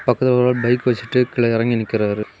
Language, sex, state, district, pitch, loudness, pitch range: Tamil, male, Tamil Nadu, Kanyakumari, 120 Hz, -18 LUFS, 115-125 Hz